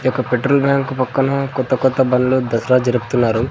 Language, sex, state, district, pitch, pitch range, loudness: Telugu, male, Andhra Pradesh, Sri Satya Sai, 130 Hz, 125-135 Hz, -16 LUFS